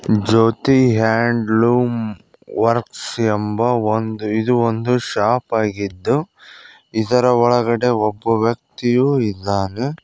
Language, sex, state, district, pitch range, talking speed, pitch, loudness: Kannada, male, Karnataka, Koppal, 110-120 Hz, 85 wpm, 115 Hz, -17 LUFS